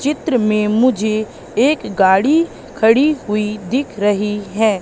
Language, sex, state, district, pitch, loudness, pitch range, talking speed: Hindi, female, Madhya Pradesh, Katni, 215 Hz, -16 LUFS, 210-265 Hz, 125 wpm